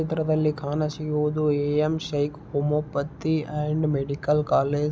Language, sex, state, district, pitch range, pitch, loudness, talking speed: Kannada, male, Karnataka, Belgaum, 145-155 Hz, 150 Hz, -25 LUFS, 110 wpm